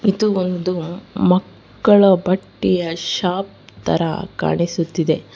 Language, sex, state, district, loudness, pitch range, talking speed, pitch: Kannada, female, Karnataka, Bangalore, -18 LUFS, 170-195 Hz, 80 wpm, 180 Hz